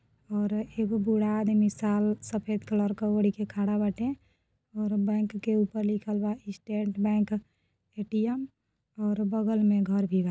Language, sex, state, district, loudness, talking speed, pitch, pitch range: Bhojpuri, female, Uttar Pradesh, Deoria, -29 LUFS, 150 wpm, 210 Hz, 205-215 Hz